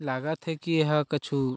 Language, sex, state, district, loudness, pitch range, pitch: Chhattisgarhi, male, Chhattisgarh, Sarguja, -28 LUFS, 140-160 Hz, 150 Hz